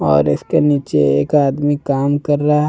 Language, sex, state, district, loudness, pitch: Hindi, male, Jharkhand, Deoghar, -15 LUFS, 145 Hz